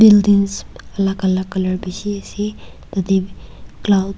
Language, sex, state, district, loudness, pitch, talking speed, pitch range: Nagamese, female, Nagaland, Kohima, -18 LUFS, 195 Hz, 130 wpm, 190-205 Hz